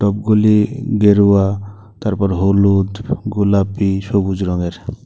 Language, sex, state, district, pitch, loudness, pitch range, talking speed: Bengali, male, Tripura, West Tripura, 100 Hz, -15 LUFS, 100-105 Hz, 85 wpm